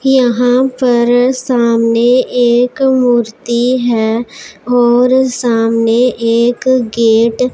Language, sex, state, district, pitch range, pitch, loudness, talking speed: Hindi, male, Punjab, Pathankot, 230-255 Hz, 245 Hz, -11 LUFS, 90 wpm